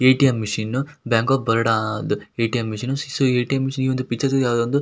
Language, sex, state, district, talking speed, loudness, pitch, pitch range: Kannada, male, Karnataka, Shimoga, 200 wpm, -21 LUFS, 130 Hz, 115-135 Hz